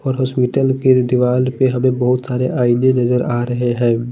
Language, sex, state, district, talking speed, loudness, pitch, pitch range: Hindi, male, Bihar, Patna, 190 wpm, -16 LUFS, 125 Hz, 125-130 Hz